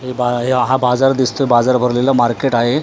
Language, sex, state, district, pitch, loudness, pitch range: Marathi, male, Maharashtra, Mumbai Suburban, 125 Hz, -14 LUFS, 120-130 Hz